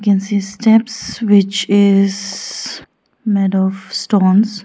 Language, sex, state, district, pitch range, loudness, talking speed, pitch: English, female, Arunachal Pradesh, Lower Dibang Valley, 195-210 Hz, -15 LUFS, 105 wpm, 200 Hz